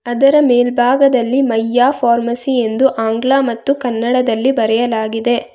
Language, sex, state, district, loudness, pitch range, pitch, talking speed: Kannada, female, Karnataka, Bangalore, -14 LUFS, 230-265 Hz, 245 Hz, 95 wpm